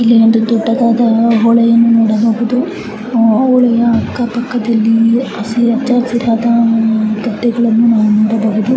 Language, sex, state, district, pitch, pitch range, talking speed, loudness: Kannada, female, Karnataka, Chamarajanagar, 230 Hz, 225-235 Hz, 70 wpm, -12 LUFS